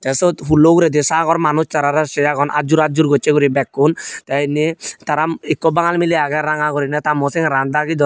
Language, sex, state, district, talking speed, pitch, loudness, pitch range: Chakma, male, Tripura, Unakoti, 210 wpm, 150 Hz, -16 LUFS, 145-160 Hz